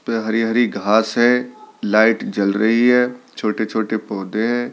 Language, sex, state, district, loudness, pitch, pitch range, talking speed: Hindi, male, Delhi, New Delhi, -18 LUFS, 110 Hz, 110-120 Hz, 140 wpm